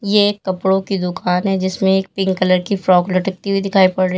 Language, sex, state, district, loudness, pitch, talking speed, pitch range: Hindi, female, Uttar Pradesh, Lalitpur, -17 LUFS, 190 Hz, 245 wpm, 185-195 Hz